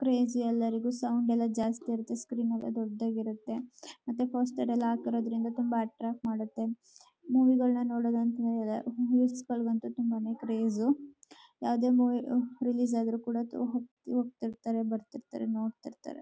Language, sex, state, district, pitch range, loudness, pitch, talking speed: Kannada, female, Karnataka, Chamarajanagar, 230-250 Hz, -31 LUFS, 235 Hz, 125 wpm